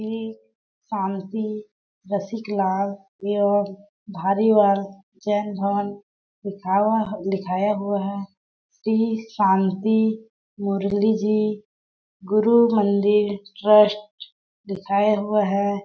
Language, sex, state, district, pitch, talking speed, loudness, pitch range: Hindi, female, Chhattisgarh, Balrampur, 205 Hz, 70 wpm, -22 LUFS, 195-215 Hz